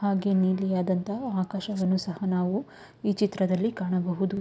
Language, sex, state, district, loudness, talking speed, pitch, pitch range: Kannada, female, Karnataka, Mysore, -27 LUFS, 110 wpm, 190 Hz, 185-200 Hz